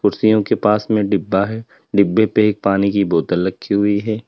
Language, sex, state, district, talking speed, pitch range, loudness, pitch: Hindi, male, Uttar Pradesh, Lalitpur, 210 wpm, 100-110 Hz, -17 LUFS, 100 Hz